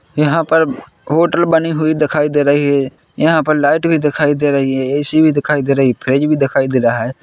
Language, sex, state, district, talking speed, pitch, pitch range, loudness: Hindi, male, Chhattisgarh, Korba, 240 wpm, 150 Hz, 140-155 Hz, -14 LUFS